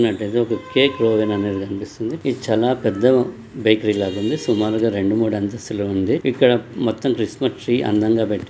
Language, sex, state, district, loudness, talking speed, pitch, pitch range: Telugu, male, Andhra Pradesh, Guntur, -19 LUFS, 120 wpm, 110 Hz, 105-120 Hz